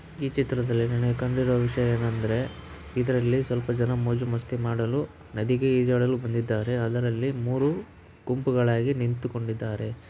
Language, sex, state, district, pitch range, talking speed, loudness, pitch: Kannada, male, Karnataka, Raichur, 115-125 Hz, 105 wpm, -26 LUFS, 120 Hz